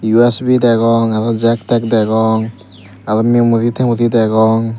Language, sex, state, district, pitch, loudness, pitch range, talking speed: Chakma, male, Tripura, Dhalai, 115 Hz, -13 LUFS, 110-120 Hz, 125 wpm